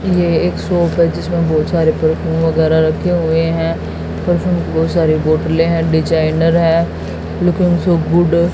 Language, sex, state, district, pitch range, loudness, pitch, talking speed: Hindi, female, Haryana, Jhajjar, 160-170 Hz, -14 LUFS, 165 Hz, 170 wpm